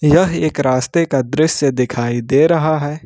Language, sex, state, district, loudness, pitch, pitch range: Hindi, male, Jharkhand, Ranchi, -15 LUFS, 145 Hz, 130-160 Hz